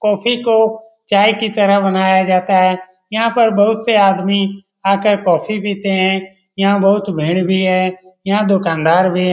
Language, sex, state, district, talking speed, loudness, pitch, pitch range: Hindi, male, Bihar, Lakhisarai, 175 wpm, -14 LUFS, 195 Hz, 185-210 Hz